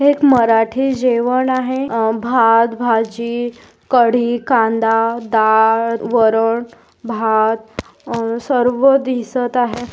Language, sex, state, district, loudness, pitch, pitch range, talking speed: Hindi, female, Maharashtra, Aurangabad, -15 LUFS, 235 Hz, 225-250 Hz, 95 wpm